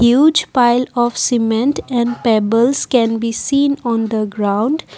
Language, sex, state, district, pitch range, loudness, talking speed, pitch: English, female, Assam, Kamrup Metropolitan, 225-260 Hz, -15 LUFS, 145 wpm, 240 Hz